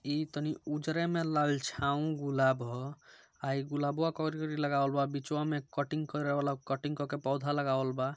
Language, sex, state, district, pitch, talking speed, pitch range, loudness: Bhojpuri, male, Bihar, Gopalganj, 145 Hz, 175 wpm, 140-150 Hz, -33 LUFS